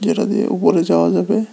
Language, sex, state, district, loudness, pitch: Bengali, male, Tripura, West Tripura, -16 LUFS, 210 Hz